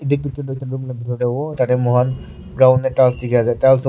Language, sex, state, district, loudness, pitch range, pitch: Nagamese, male, Nagaland, Kohima, -17 LUFS, 125-135 Hz, 130 Hz